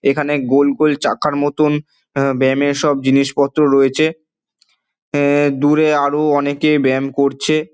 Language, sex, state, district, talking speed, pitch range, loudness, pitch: Bengali, male, West Bengal, Dakshin Dinajpur, 140 wpm, 140-150 Hz, -15 LUFS, 145 Hz